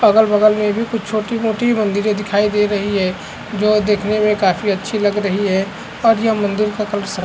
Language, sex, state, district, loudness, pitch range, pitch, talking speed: Hindi, male, Bihar, Saharsa, -17 LUFS, 200-215 Hz, 210 Hz, 200 wpm